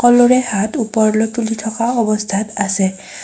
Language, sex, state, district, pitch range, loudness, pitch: Assamese, female, Assam, Sonitpur, 200-235 Hz, -16 LUFS, 220 Hz